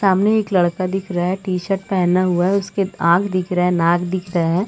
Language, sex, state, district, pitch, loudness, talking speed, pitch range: Hindi, female, Chhattisgarh, Raigarh, 185 Hz, -18 LUFS, 255 wpm, 175-195 Hz